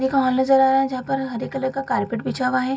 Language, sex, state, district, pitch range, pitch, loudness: Hindi, female, Bihar, Bhagalpur, 255-270 Hz, 265 Hz, -21 LUFS